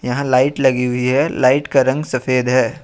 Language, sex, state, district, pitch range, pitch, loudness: Hindi, male, Jharkhand, Ranchi, 125-140 Hz, 130 Hz, -16 LUFS